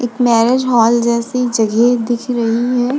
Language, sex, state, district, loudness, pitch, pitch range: Hindi, female, Uttar Pradesh, Budaun, -14 LUFS, 240 Hz, 230-245 Hz